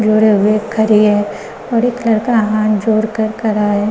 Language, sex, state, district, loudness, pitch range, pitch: Hindi, female, Uttar Pradesh, Gorakhpur, -14 LUFS, 210-220 Hz, 215 Hz